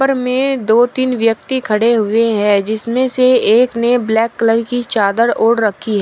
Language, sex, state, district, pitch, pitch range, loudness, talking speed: Hindi, female, Uttar Pradesh, Shamli, 230 Hz, 220-250 Hz, -14 LUFS, 180 wpm